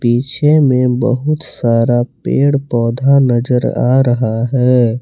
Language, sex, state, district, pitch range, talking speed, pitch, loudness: Hindi, male, Jharkhand, Palamu, 120-135 Hz, 120 wpm, 125 Hz, -13 LUFS